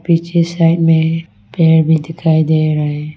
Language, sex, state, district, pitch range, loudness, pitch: Hindi, female, Arunachal Pradesh, Longding, 155-165 Hz, -13 LUFS, 160 Hz